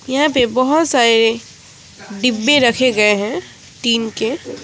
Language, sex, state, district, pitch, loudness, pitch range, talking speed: Hindi, female, West Bengal, Alipurduar, 240 Hz, -15 LUFS, 225-260 Hz, 130 wpm